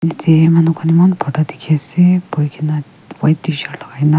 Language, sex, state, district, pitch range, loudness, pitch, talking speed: Nagamese, female, Nagaland, Kohima, 150-165 Hz, -14 LUFS, 155 Hz, 200 wpm